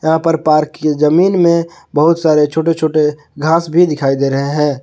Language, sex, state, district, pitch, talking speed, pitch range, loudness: Hindi, male, Jharkhand, Garhwa, 155 Hz, 200 wpm, 150-165 Hz, -13 LUFS